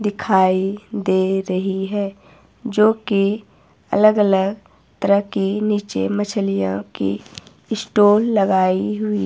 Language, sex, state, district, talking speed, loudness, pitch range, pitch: Hindi, female, Himachal Pradesh, Shimla, 105 wpm, -19 LUFS, 185-210 Hz, 195 Hz